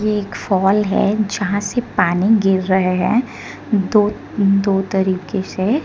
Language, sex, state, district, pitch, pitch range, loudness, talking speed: Hindi, female, Jharkhand, Deoghar, 200 Hz, 190-210 Hz, -17 LUFS, 135 wpm